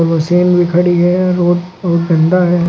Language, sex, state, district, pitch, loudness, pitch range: Hindi, male, Uttar Pradesh, Lucknow, 175 Hz, -12 LUFS, 170-180 Hz